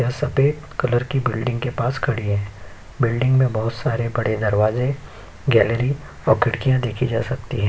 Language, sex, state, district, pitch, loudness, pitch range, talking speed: Hindi, male, Uttar Pradesh, Jyotiba Phule Nagar, 120 Hz, -21 LUFS, 110-130 Hz, 170 wpm